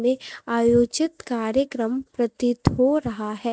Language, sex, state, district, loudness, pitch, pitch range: Hindi, female, Chhattisgarh, Raipur, -23 LUFS, 240 Hz, 235-265 Hz